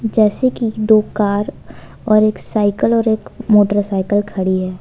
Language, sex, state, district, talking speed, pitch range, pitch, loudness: Hindi, female, Jharkhand, Ranchi, 150 wpm, 205-220 Hz, 210 Hz, -16 LUFS